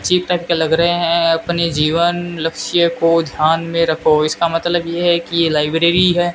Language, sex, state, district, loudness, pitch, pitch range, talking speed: Hindi, male, Rajasthan, Bikaner, -15 LUFS, 170 Hz, 165-175 Hz, 190 wpm